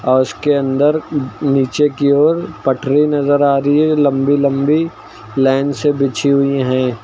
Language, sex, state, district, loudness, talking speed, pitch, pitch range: Hindi, male, Uttar Pradesh, Lucknow, -15 LUFS, 155 wpm, 140 Hz, 135-145 Hz